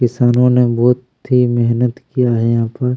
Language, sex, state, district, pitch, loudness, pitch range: Hindi, male, Chhattisgarh, Kabirdham, 125 Hz, -14 LUFS, 120-125 Hz